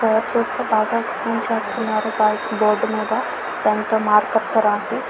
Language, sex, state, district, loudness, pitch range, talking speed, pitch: Telugu, female, Andhra Pradesh, Visakhapatnam, -20 LUFS, 215-225 Hz, 130 wpm, 220 Hz